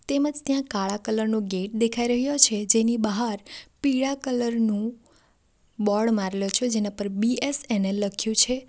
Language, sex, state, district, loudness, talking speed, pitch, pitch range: Gujarati, female, Gujarat, Valsad, -24 LUFS, 150 wpm, 225 Hz, 210-250 Hz